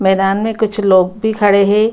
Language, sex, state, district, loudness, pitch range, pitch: Hindi, female, Bihar, Lakhisarai, -13 LUFS, 195-220 Hz, 205 Hz